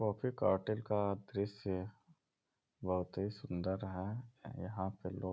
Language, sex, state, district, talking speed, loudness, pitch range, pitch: Hindi, male, Uttar Pradesh, Ghazipur, 145 wpm, -40 LUFS, 95-110 Hz, 100 Hz